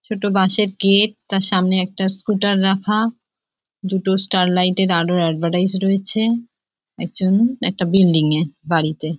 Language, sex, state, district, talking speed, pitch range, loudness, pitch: Bengali, female, West Bengal, Jhargram, 125 wpm, 180-205 Hz, -17 LUFS, 190 Hz